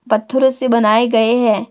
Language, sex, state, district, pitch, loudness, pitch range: Hindi, female, Maharashtra, Dhule, 230 Hz, -14 LUFS, 215-245 Hz